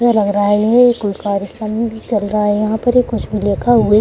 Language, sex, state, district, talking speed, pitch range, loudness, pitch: Hindi, female, Bihar, Gaya, 300 wpm, 205-230 Hz, -15 LUFS, 215 Hz